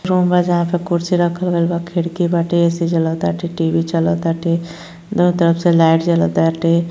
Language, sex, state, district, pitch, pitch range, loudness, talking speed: Bhojpuri, female, Uttar Pradesh, Gorakhpur, 170 Hz, 165-175 Hz, -16 LUFS, 165 wpm